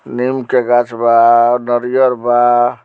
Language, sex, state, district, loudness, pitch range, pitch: Bhojpuri, male, Bihar, Muzaffarpur, -12 LUFS, 120-125 Hz, 120 Hz